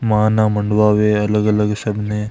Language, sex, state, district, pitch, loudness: Marwari, male, Rajasthan, Nagaur, 105 Hz, -16 LUFS